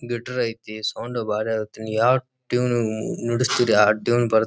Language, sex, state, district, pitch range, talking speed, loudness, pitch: Kannada, male, Karnataka, Dharwad, 110-120 Hz, 145 wpm, -22 LUFS, 115 Hz